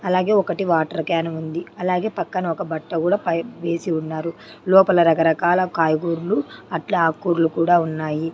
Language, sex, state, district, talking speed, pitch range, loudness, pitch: Telugu, female, Andhra Pradesh, Sri Satya Sai, 145 wpm, 160-180 Hz, -20 LUFS, 170 Hz